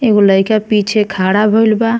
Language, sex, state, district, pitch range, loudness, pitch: Bhojpuri, female, Bihar, Muzaffarpur, 200-220 Hz, -12 LUFS, 215 Hz